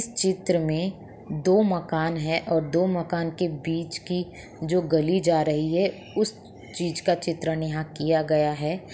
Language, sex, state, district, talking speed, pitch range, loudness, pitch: Hindi, female, Jharkhand, Sahebganj, 160 wpm, 160-180 Hz, -25 LUFS, 170 Hz